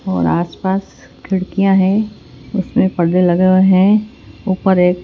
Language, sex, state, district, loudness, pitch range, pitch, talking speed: Hindi, female, Chhattisgarh, Raipur, -15 LUFS, 185-195 Hz, 190 Hz, 130 wpm